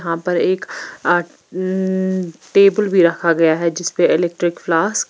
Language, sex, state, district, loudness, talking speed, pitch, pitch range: Hindi, female, Bihar, Patna, -17 LUFS, 165 wpm, 175 Hz, 170-190 Hz